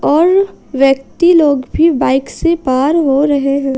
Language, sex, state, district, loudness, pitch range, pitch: Hindi, female, Jharkhand, Ranchi, -12 LUFS, 270-330 Hz, 285 Hz